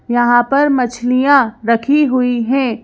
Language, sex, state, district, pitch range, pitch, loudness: Hindi, female, Madhya Pradesh, Bhopal, 240-270 Hz, 250 Hz, -13 LUFS